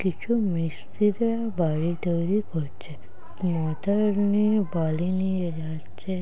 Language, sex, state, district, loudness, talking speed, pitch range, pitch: Bengali, female, West Bengal, North 24 Parganas, -26 LUFS, 95 wpm, 165-205 Hz, 185 Hz